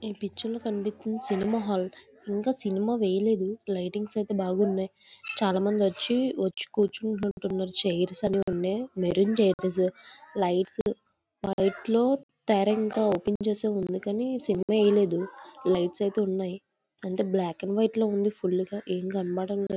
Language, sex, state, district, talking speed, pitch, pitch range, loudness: Telugu, female, Andhra Pradesh, Visakhapatnam, 115 wpm, 200 Hz, 190-215 Hz, -28 LUFS